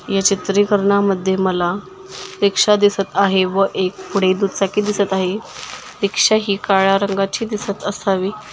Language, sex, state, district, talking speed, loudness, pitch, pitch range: Marathi, female, Maharashtra, Nagpur, 135 wpm, -17 LUFS, 200 Hz, 195-205 Hz